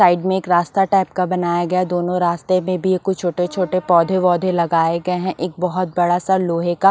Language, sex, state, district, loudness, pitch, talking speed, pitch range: Hindi, female, Maharashtra, Washim, -18 LUFS, 180 Hz, 215 wpm, 175-185 Hz